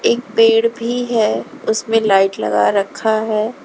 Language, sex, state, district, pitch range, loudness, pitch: Hindi, female, Uttar Pradesh, Lalitpur, 205-230 Hz, -16 LUFS, 220 Hz